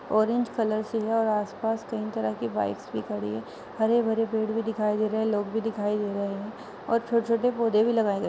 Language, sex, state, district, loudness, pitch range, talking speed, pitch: Hindi, female, Uttar Pradesh, Muzaffarnagar, -27 LUFS, 205-225 Hz, 255 wpm, 220 Hz